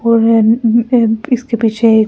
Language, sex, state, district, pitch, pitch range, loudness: Hindi, female, Delhi, New Delhi, 230 Hz, 225-235 Hz, -12 LUFS